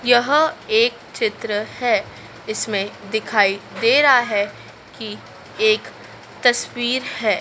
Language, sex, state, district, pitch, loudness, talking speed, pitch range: Hindi, female, Madhya Pradesh, Dhar, 245 Hz, -19 LUFS, 105 wpm, 215-315 Hz